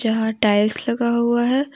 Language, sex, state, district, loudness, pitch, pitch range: Hindi, female, Jharkhand, Deoghar, -19 LUFS, 235 Hz, 220-240 Hz